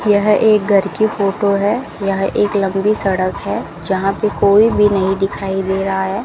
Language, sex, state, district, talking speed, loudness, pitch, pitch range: Hindi, female, Rajasthan, Bikaner, 190 wpm, -15 LUFS, 200 Hz, 195-210 Hz